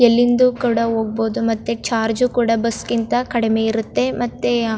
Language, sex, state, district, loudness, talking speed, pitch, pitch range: Kannada, female, Karnataka, Chamarajanagar, -18 LUFS, 140 wpm, 230 Hz, 225-240 Hz